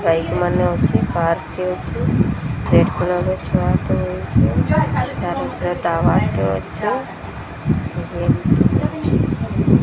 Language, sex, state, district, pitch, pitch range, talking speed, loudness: Odia, female, Odisha, Sambalpur, 165 Hz, 115-180 Hz, 110 wpm, -19 LUFS